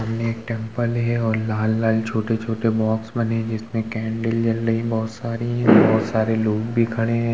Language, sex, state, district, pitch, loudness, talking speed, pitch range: Hindi, male, Uttar Pradesh, Muzaffarnagar, 115 Hz, -21 LUFS, 190 wpm, 110-115 Hz